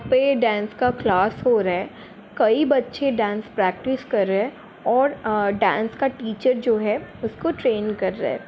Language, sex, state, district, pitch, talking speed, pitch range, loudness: Hindi, female, Jharkhand, Sahebganj, 230 Hz, 190 wpm, 210-260 Hz, -22 LUFS